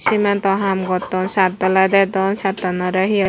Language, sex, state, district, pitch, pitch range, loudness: Chakma, female, Tripura, West Tripura, 190 Hz, 185-195 Hz, -17 LUFS